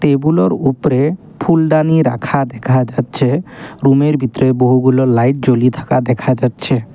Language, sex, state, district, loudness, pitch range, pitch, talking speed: Bengali, male, Assam, Kamrup Metropolitan, -14 LUFS, 125-145 Hz, 130 Hz, 120 wpm